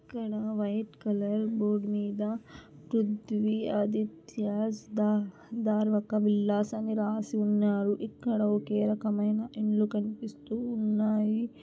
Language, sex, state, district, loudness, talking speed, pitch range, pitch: Telugu, female, Andhra Pradesh, Anantapur, -30 LUFS, 115 wpm, 210-220 Hz, 215 Hz